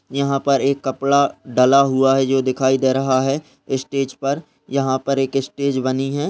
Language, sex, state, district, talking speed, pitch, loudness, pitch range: Hindi, male, Rajasthan, Churu, 190 wpm, 135 Hz, -19 LUFS, 130-140 Hz